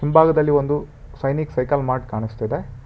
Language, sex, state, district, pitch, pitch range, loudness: Kannada, male, Karnataka, Bangalore, 140 Hz, 125-145 Hz, -20 LUFS